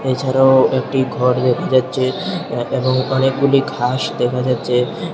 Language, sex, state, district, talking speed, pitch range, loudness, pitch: Bengali, male, Tripura, Unakoti, 115 wpm, 125-135 Hz, -16 LUFS, 130 Hz